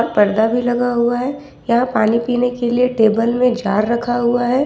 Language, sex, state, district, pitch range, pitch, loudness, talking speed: Hindi, female, Jharkhand, Ranchi, 230-245 Hz, 240 Hz, -16 LUFS, 205 wpm